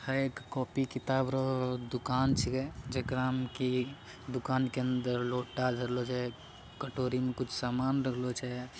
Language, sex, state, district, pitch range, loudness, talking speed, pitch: Angika, male, Bihar, Bhagalpur, 125-130 Hz, -34 LUFS, 155 wpm, 130 Hz